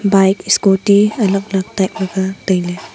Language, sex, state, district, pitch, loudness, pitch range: Wancho, female, Arunachal Pradesh, Longding, 190 Hz, -15 LUFS, 190-200 Hz